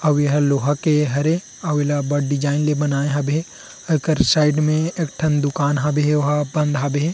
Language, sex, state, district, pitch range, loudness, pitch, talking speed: Chhattisgarhi, male, Chhattisgarh, Rajnandgaon, 145-155 Hz, -19 LUFS, 150 Hz, 200 wpm